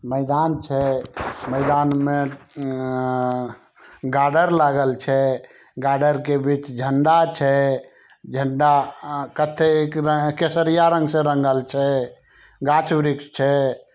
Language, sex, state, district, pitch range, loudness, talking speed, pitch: Maithili, male, Bihar, Samastipur, 135-150 Hz, -20 LUFS, 105 wpm, 140 Hz